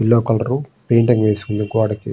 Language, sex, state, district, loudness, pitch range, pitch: Telugu, male, Andhra Pradesh, Srikakulam, -17 LUFS, 105-120 Hz, 110 Hz